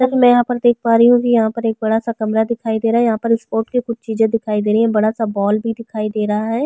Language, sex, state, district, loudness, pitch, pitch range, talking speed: Hindi, female, Chhattisgarh, Sukma, -16 LUFS, 225 Hz, 220-235 Hz, 315 wpm